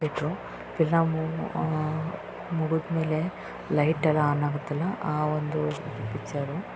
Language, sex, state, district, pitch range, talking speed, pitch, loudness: Kannada, female, Karnataka, Raichur, 150-160 Hz, 105 wpm, 155 Hz, -28 LUFS